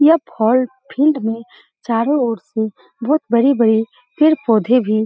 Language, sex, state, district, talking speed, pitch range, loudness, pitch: Hindi, female, Bihar, Saran, 130 wpm, 225-285 Hz, -16 LUFS, 245 Hz